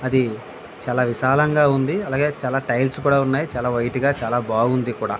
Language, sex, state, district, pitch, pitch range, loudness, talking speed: Telugu, male, Andhra Pradesh, Visakhapatnam, 130 Hz, 120-140 Hz, -20 LUFS, 185 wpm